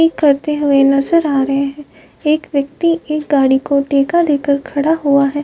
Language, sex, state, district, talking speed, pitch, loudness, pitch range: Hindi, female, Uttar Pradesh, Jyotiba Phule Nagar, 175 wpm, 285 Hz, -14 LUFS, 275-305 Hz